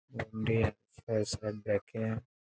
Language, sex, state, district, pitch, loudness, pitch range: Maithili, male, Bihar, Saharsa, 110 Hz, -34 LUFS, 105-115 Hz